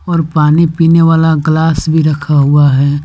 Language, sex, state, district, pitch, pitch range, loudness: Hindi, male, Bihar, West Champaran, 160 Hz, 150-160 Hz, -10 LUFS